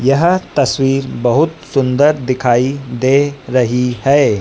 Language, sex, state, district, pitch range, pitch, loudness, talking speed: Hindi, female, Madhya Pradesh, Dhar, 125-145 Hz, 135 Hz, -14 LUFS, 110 wpm